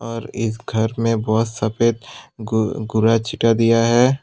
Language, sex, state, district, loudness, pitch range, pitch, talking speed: Hindi, male, Tripura, West Tripura, -19 LUFS, 110-115 Hz, 115 Hz, 140 wpm